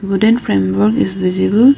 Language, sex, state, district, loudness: English, female, Arunachal Pradesh, Lower Dibang Valley, -14 LUFS